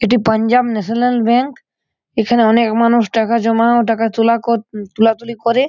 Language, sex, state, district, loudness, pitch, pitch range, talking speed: Bengali, male, West Bengal, Purulia, -14 LUFS, 230 Hz, 225-235 Hz, 170 wpm